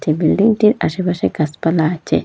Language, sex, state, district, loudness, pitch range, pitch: Bengali, female, Assam, Hailakandi, -16 LUFS, 160-200 Hz, 170 Hz